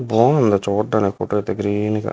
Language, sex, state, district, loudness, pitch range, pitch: Telugu, male, Andhra Pradesh, Visakhapatnam, -19 LUFS, 100-110 Hz, 105 Hz